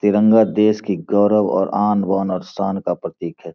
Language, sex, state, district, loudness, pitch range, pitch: Hindi, male, Bihar, Gopalganj, -18 LUFS, 95-105 Hz, 105 Hz